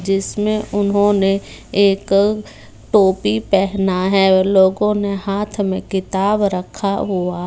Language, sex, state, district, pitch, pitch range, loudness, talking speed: Hindi, female, Bihar, Muzaffarpur, 195 Hz, 190-205 Hz, -17 LUFS, 130 wpm